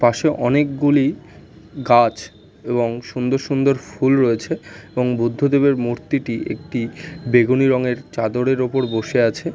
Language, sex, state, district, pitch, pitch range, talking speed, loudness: Bengali, male, West Bengal, North 24 Parganas, 125 Hz, 115-135 Hz, 115 wpm, -19 LUFS